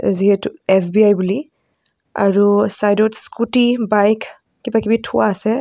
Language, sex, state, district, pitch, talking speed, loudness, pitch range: Assamese, female, Assam, Kamrup Metropolitan, 210 Hz, 130 wpm, -16 LUFS, 205-230 Hz